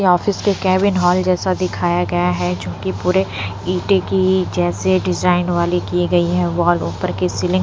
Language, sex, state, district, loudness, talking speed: Hindi, female, Punjab, Pathankot, -17 LUFS, 190 wpm